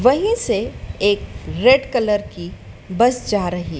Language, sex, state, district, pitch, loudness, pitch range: Hindi, female, Madhya Pradesh, Dhar, 205 Hz, -18 LUFS, 155-250 Hz